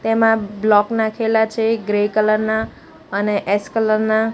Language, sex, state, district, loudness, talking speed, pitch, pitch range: Gujarati, female, Gujarat, Gandhinagar, -18 LUFS, 150 wpm, 220 Hz, 210-225 Hz